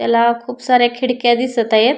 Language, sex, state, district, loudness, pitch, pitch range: Marathi, female, Maharashtra, Pune, -15 LUFS, 240 Hz, 235-250 Hz